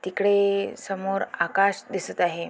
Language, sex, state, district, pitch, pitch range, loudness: Marathi, female, Maharashtra, Aurangabad, 195 Hz, 195-200 Hz, -24 LUFS